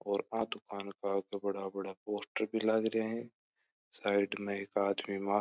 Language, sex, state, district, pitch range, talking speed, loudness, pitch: Marwari, male, Rajasthan, Churu, 100-110 Hz, 175 wpm, -36 LUFS, 100 Hz